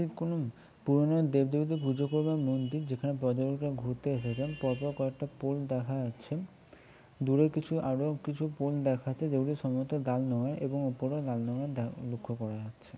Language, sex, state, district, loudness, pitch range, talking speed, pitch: Bengali, male, West Bengal, Kolkata, -33 LUFS, 130-150 Hz, 185 wpm, 135 Hz